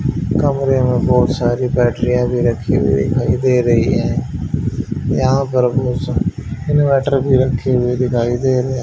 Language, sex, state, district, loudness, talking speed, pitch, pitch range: Hindi, male, Haryana, Charkhi Dadri, -16 LUFS, 155 wpm, 125 Hz, 120-130 Hz